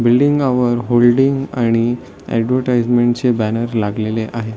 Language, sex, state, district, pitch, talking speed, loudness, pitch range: Marathi, male, Maharashtra, Solapur, 120 Hz, 120 wpm, -16 LUFS, 115-125 Hz